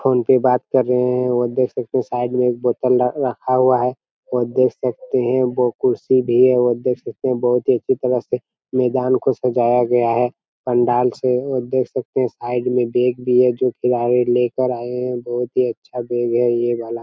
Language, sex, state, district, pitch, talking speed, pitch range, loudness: Hindi, male, Chhattisgarh, Raigarh, 125 Hz, 230 wpm, 120-130 Hz, -18 LUFS